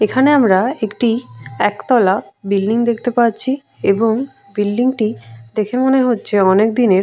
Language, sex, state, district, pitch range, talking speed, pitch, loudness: Bengali, female, West Bengal, Purulia, 200-245 Hz, 130 wpm, 220 Hz, -16 LUFS